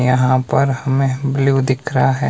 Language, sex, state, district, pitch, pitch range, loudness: Hindi, male, Himachal Pradesh, Shimla, 135 Hz, 130-135 Hz, -16 LUFS